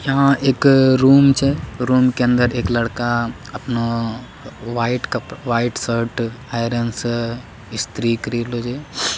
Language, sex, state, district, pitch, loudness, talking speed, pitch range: Angika, male, Bihar, Bhagalpur, 120 Hz, -18 LUFS, 100 wpm, 115-130 Hz